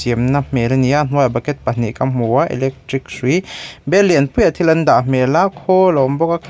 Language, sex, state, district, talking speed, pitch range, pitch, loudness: Mizo, male, Mizoram, Aizawl, 240 wpm, 130-160 Hz, 135 Hz, -15 LUFS